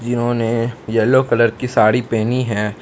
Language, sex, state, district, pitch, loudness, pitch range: Hindi, male, Jharkhand, Palamu, 115 Hz, -17 LUFS, 110-125 Hz